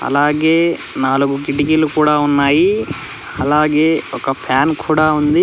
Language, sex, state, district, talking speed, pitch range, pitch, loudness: Telugu, male, Andhra Pradesh, Sri Satya Sai, 110 wpm, 140-155 Hz, 150 Hz, -15 LUFS